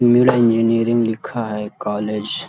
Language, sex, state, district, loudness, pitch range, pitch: Hindi, male, Uttar Pradesh, Deoria, -18 LUFS, 105-120 Hz, 115 Hz